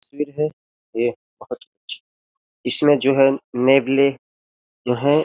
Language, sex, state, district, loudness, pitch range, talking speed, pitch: Hindi, male, Uttar Pradesh, Jyotiba Phule Nagar, -19 LUFS, 125-145 Hz, 125 wpm, 135 Hz